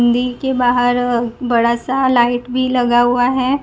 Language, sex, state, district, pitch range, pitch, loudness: Hindi, female, Gujarat, Gandhinagar, 240-255 Hz, 245 Hz, -15 LUFS